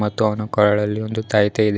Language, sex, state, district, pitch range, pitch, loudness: Kannada, male, Karnataka, Bidar, 105-110 Hz, 105 Hz, -19 LUFS